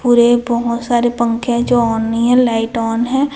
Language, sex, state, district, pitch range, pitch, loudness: Hindi, female, Chhattisgarh, Raipur, 230-240 Hz, 235 Hz, -15 LUFS